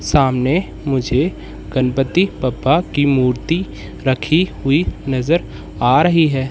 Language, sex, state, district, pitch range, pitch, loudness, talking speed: Hindi, male, Madhya Pradesh, Katni, 125-160 Hz, 135 Hz, -17 LUFS, 110 wpm